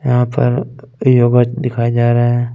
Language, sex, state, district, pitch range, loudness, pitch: Hindi, male, Punjab, Fazilka, 120-125 Hz, -14 LUFS, 125 Hz